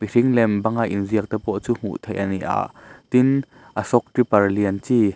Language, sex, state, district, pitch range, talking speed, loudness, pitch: Mizo, male, Mizoram, Aizawl, 100-120 Hz, 200 wpm, -21 LUFS, 110 Hz